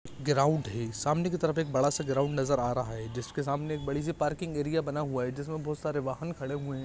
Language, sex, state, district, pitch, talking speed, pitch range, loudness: Hindi, male, Andhra Pradesh, Chittoor, 145 Hz, 260 wpm, 130-155 Hz, -31 LUFS